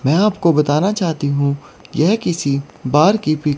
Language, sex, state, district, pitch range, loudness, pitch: Hindi, female, Chandigarh, Chandigarh, 140-175 Hz, -17 LUFS, 150 Hz